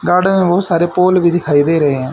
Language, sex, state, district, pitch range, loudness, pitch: Hindi, male, Haryana, Charkhi Dadri, 150-180 Hz, -13 LUFS, 175 Hz